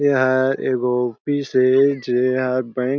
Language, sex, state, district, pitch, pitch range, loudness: Chhattisgarhi, male, Chhattisgarh, Jashpur, 130 Hz, 125-135 Hz, -19 LUFS